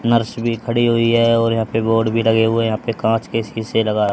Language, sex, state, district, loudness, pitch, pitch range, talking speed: Hindi, male, Haryana, Rohtak, -17 LUFS, 115 Hz, 110-115 Hz, 260 wpm